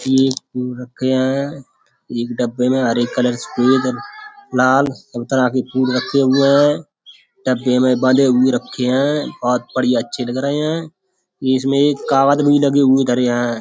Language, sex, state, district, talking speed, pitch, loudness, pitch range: Hindi, male, Uttar Pradesh, Budaun, 165 wpm, 130 Hz, -17 LUFS, 125-140 Hz